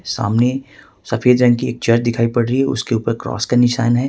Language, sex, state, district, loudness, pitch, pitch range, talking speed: Hindi, male, Jharkhand, Ranchi, -16 LUFS, 120 Hz, 115-125 Hz, 220 wpm